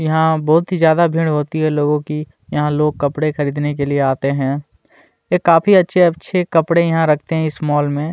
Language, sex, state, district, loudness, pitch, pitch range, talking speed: Hindi, male, Chhattisgarh, Kabirdham, -16 LUFS, 155 Hz, 145-165 Hz, 190 wpm